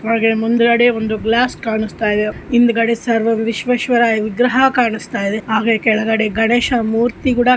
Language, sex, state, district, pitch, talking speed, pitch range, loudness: Kannada, female, Karnataka, Shimoga, 230 Hz, 120 wpm, 220-240 Hz, -15 LUFS